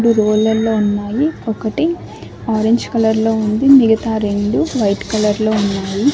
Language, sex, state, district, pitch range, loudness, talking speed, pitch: Telugu, male, Andhra Pradesh, Annamaya, 210-230 Hz, -15 LUFS, 115 wpm, 220 Hz